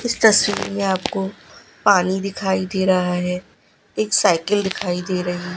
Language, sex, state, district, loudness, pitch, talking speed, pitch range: Hindi, female, Gujarat, Gandhinagar, -19 LUFS, 190 Hz, 150 wpm, 180-200 Hz